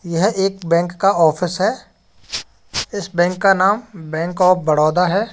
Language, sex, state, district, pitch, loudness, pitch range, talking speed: Hindi, male, Uttar Pradesh, Jalaun, 180 Hz, -17 LUFS, 170-195 Hz, 160 wpm